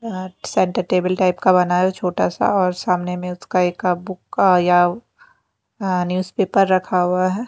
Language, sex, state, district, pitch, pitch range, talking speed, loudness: Hindi, female, Maharashtra, Mumbai Suburban, 185 Hz, 180-190 Hz, 175 wpm, -19 LUFS